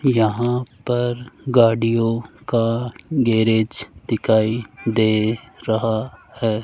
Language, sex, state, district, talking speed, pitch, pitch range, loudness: Hindi, male, Rajasthan, Jaipur, 80 wpm, 115 Hz, 110-120 Hz, -20 LUFS